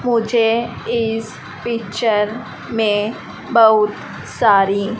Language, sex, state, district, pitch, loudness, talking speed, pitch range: Hindi, female, Madhya Pradesh, Dhar, 225 Hz, -17 LUFS, 70 wpm, 210-235 Hz